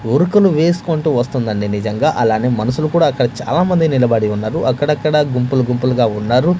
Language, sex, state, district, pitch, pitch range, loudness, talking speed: Telugu, male, Andhra Pradesh, Manyam, 125 Hz, 120-155 Hz, -15 LUFS, 145 wpm